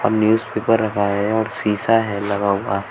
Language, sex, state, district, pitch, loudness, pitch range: Hindi, male, Uttar Pradesh, Shamli, 105 Hz, -19 LUFS, 100-110 Hz